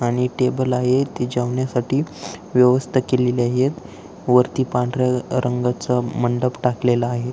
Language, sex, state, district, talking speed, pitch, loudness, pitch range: Marathi, male, Maharashtra, Aurangabad, 105 wpm, 125 Hz, -20 LUFS, 125-130 Hz